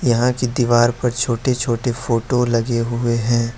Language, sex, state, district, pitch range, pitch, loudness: Hindi, male, Jharkhand, Ranchi, 115-125 Hz, 120 Hz, -18 LUFS